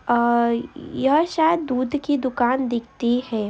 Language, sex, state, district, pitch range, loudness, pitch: Hindi, female, Uttar Pradesh, Hamirpur, 235-295 Hz, -21 LUFS, 255 Hz